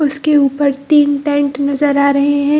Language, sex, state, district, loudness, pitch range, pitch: Hindi, female, Bihar, Gaya, -13 LUFS, 280-295 Hz, 285 Hz